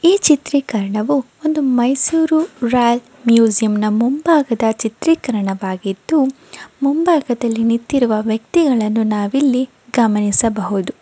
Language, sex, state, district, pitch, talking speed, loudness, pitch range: Kannada, female, Karnataka, Mysore, 240 Hz, 75 wpm, -16 LUFS, 220-285 Hz